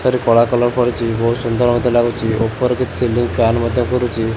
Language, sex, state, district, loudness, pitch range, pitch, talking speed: Odia, male, Odisha, Khordha, -16 LUFS, 115-125 Hz, 120 Hz, 190 wpm